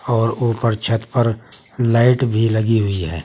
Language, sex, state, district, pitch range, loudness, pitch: Hindi, male, Uttar Pradesh, Saharanpur, 110-120 Hz, -17 LUFS, 115 Hz